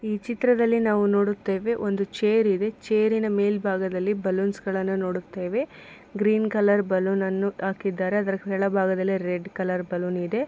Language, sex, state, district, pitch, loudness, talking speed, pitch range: Kannada, female, Karnataka, Mysore, 200 Hz, -24 LUFS, 125 wpm, 190-210 Hz